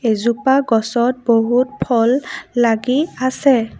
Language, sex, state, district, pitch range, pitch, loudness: Assamese, female, Assam, Sonitpur, 230-260 Hz, 240 Hz, -16 LUFS